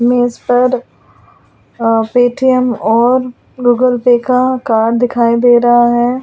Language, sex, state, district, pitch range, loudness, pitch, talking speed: Hindi, female, Delhi, New Delhi, 240-250 Hz, -12 LUFS, 245 Hz, 115 wpm